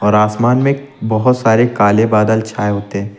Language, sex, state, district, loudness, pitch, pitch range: Hindi, male, Uttar Pradesh, Lucknow, -14 LUFS, 110 Hz, 105-120 Hz